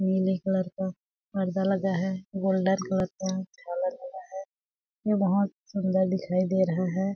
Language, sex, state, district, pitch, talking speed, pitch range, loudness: Hindi, female, Chhattisgarh, Balrampur, 190 Hz, 160 wpm, 185-195 Hz, -28 LUFS